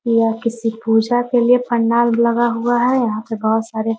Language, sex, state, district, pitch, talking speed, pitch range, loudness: Hindi, female, Bihar, Muzaffarpur, 230 Hz, 210 wpm, 225-240 Hz, -17 LUFS